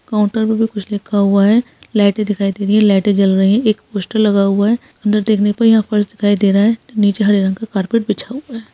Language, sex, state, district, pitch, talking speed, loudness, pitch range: Hindi, female, Bihar, Saharsa, 210 Hz, 260 wpm, -14 LUFS, 200-220 Hz